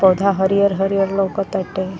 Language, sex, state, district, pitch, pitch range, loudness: Bhojpuri, female, Uttar Pradesh, Ghazipur, 195 Hz, 190-195 Hz, -18 LUFS